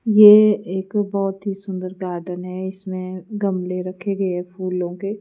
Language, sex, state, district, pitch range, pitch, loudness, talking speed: Hindi, female, Himachal Pradesh, Shimla, 185-200 Hz, 190 Hz, -20 LUFS, 150 wpm